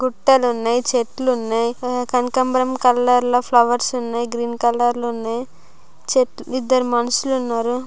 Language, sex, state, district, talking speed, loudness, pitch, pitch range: Telugu, female, Andhra Pradesh, Guntur, 135 wpm, -19 LUFS, 245 Hz, 235-255 Hz